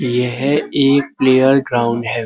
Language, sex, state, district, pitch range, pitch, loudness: Hindi, male, Uttar Pradesh, Budaun, 120-140 Hz, 130 Hz, -15 LUFS